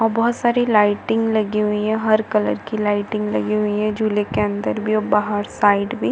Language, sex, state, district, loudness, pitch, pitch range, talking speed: Hindi, female, Chhattisgarh, Bilaspur, -19 LUFS, 215 Hz, 210-220 Hz, 205 wpm